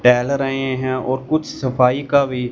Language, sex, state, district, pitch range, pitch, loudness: Hindi, male, Punjab, Fazilka, 125-140 Hz, 130 Hz, -19 LUFS